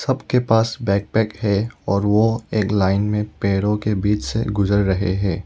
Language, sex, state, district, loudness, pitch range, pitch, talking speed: Hindi, male, Arunachal Pradesh, Lower Dibang Valley, -20 LUFS, 100-110 Hz, 105 Hz, 185 wpm